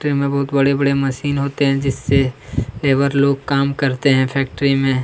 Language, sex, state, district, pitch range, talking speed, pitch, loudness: Hindi, male, Chhattisgarh, Kabirdham, 135-140 Hz, 180 wpm, 140 Hz, -17 LUFS